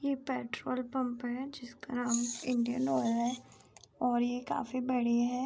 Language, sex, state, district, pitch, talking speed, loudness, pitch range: Hindi, female, Bihar, Gopalganj, 245 Hz, 155 wpm, -34 LUFS, 240-255 Hz